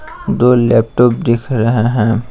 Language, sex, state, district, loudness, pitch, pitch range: Hindi, male, Bihar, Patna, -13 LUFS, 120 Hz, 115-125 Hz